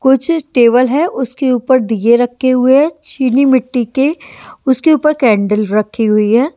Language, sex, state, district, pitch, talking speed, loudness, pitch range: Hindi, female, Haryana, Jhajjar, 255 Hz, 165 wpm, -12 LUFS, 235-275 Hz